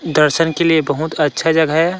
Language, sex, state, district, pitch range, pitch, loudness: Chhattisgarhi, male, Chhattisgarh, Rajnandgaon, 155-165 Hz, 160 Hz, -15 LUFS